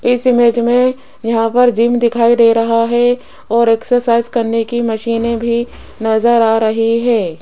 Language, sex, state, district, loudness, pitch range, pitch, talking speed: Hindi, female, Rajasthan, Jaipur, -13 LUFS, 230-240 Hz, 235 Hz, 160 wpm